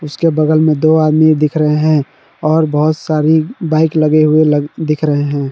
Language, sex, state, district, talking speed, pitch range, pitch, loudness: Hindi, male, Jharkhand, Palamu, 195 wpm, 150-155 Hz, 155 Hz, -12 LUFS